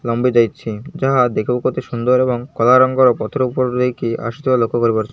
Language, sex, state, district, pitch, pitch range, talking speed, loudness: Odia, male, Odisha, Malkangiri, 125 Hz, 115-130 Hz, 210 wpm, -16 LUFS